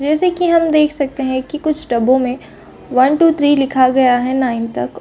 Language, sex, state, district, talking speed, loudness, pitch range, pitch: Hindi, female, Chhattisgarh, Bastar, 230 wpm, -15 LUFS, 255-305 Hz, 265 Hz